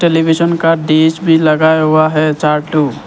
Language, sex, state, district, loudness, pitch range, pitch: Hindi, male, Arunachal Pradesh, Lower Dibang Valley, -11 LUFS, 155-165 Hz, 155 Hz